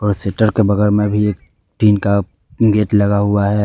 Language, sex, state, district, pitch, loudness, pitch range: Hindi, male, Jharkhand, Ranchi, 105 Hz, -15 LUFS, 100-105 Hz